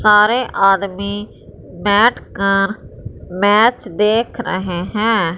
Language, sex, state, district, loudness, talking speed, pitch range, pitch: Hindi, female, Punjab, Fazilka, -16 LUFS, 80 wpm, 185-210 Hz, 200 Hz